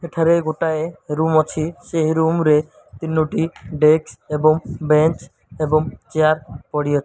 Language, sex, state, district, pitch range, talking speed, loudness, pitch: Odia, male, Odisha, Malkangiri, 150-160 Hz, 135 wpm, -19 LUFS, 155 Hz